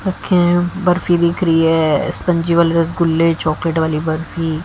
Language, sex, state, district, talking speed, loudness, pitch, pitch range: Hindi, female, Haryana, Jhajjar, 140 wpm, -15 LUFS, 165 Hz, 160-175 Hz